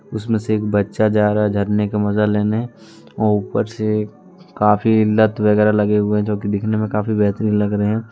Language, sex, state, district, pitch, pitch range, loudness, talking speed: Hindi, male, Jharkhand, Deoghar, 105 Hz, 105-110 Hz, -18 LUFS, 200 wpm